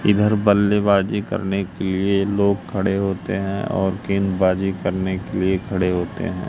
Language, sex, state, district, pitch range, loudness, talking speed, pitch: Hindi, male, Madhya Pradesh, Katni, 95-100 Hz, -20 LUFS, 155 wpm, 95 Hz